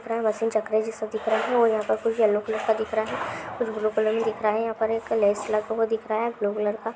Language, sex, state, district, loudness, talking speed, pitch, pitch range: Hindi, female, Goa, North and South Goa, -25 LUFS, 295 wpm, 220 Hz, 215-225 Hz